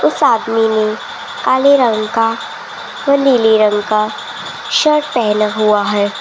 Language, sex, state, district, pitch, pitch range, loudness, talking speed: Hindi, female, Rajasthan, Jaipur, 220 Hz, 215-255 Hz, -14 LUFS, 135 wpm